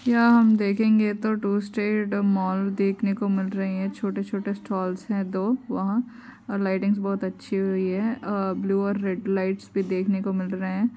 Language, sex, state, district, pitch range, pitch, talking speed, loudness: Hindi, female, Uttar Pradesh, Varanasi, 195-210 Hz, 200 Hz, 190 wpm, -25 LUFS